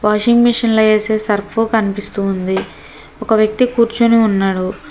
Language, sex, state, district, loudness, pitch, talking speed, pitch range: Telugu, female, Telangana, Hyderabad, -14 LUFS, 215 Hz, 120 wpm, 200-230 Hz